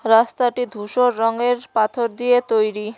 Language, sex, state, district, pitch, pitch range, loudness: Bengali, female, West Bengal, Cooch Behar, 235 Hz, 225-245 Hz, -19 LUFS